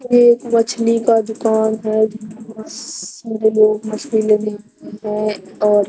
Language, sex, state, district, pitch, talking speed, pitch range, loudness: Hindi, female, Bihar, Katihar, 220 Hz, 110 wpm, 215-225 Hz, -17 LUFS